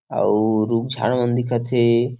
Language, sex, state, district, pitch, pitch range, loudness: Chhattisgarhi, male, Chhattisgarh, Sarguja, 120 Hz, 115-125 Hz, -19 LUFS